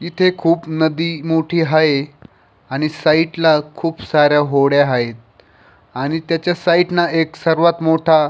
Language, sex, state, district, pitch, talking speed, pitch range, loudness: Marathi, male, Maharashtra, Pune, 160 Hz, 135 wpm, 145-165 Hz, -16 LUFS